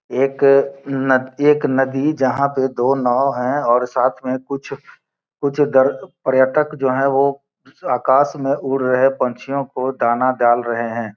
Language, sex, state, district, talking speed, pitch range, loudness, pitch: Hindi, male, Bihar, Gopalganj, 150 wpm, 125-140 Hz, -17 LUFS, 135 Hz